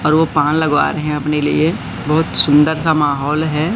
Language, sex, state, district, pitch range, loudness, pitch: Hindi, male, Madhya Pradesh, Katni, 150-160 Hz, -15 LUFS, 150 Hz